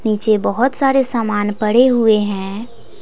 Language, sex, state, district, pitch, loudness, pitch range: Hindi, female, Bihar, West Champaran, 220 Hz, -15 LUFS, 210-250 Hz